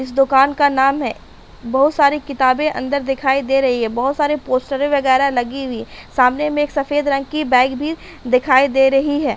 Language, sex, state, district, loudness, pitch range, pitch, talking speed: Hindi, female, Uttar Pradesh, Hamirpur, -16 LUFS, 260-290 Hz, 275 Hz, 205 wpm